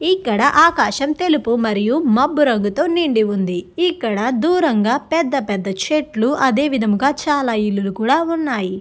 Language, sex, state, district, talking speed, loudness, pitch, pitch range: Telugu, female, Andhra Pradesh, Guntur, 125 wpm, -17 LUFS, 265 Hz, 215-305 Hz